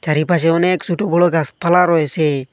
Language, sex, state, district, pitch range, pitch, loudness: Bengali, male, Assam, Hailakandi, 155-175 Hz, 170 Hz, -15 LUFS